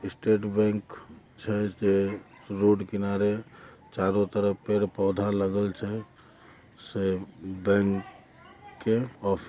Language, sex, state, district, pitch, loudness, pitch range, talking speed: Hindi, male, Jharkhand, Jamtara, 100 Hz, -28 LUFS, 100-105 Hz, 105 wpm